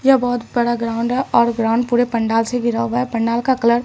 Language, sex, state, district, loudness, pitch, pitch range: Hindi, female, Bihar, Katihar, -18 LUFS, 235 Hz, 230-245 Hz